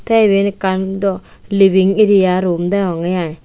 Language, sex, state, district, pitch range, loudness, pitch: Chakma, female, Tripura, West Tripura, 180-200 Hz, -14 LUFS, 190 Hz